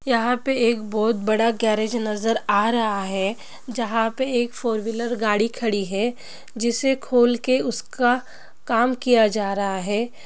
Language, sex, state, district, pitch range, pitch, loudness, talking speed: Hindi, female, Chhattisgarh, Bilaspur, 215-245 Hz, 230 Hz, -22 LUFS, 160 wpm